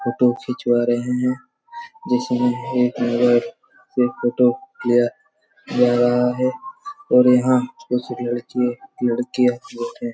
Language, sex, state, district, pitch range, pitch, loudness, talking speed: Hindi, male, Chhattisgarh, Raigarh, 120-130 Hz, 125 Hz, -20 LUFS, 125 wpm